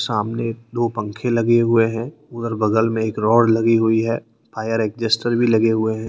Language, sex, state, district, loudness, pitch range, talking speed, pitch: Hindi, male, Rajasthan, Jaipur, -19 LUFS, 110-115 Hz, 195 wpm, 115 Hz